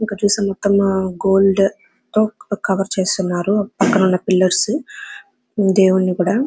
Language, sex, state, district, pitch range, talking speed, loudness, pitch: Telugu, female, Andhra Pradesh, Anantapur, 190-205 Hz, 110 wpm, -17 LUFS, 195 Hz